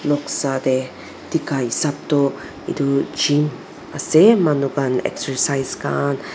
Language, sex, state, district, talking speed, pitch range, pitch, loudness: Nagamese, female, Nagaland, Dimapur, 115 wpm, 130-145 Hz, 140 Hz, -19 LUFS